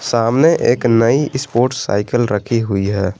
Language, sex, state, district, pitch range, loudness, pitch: Hindi, male, Jharkhand, Garhwa, 105-130 Hz, -15 LUFS, 120 Hz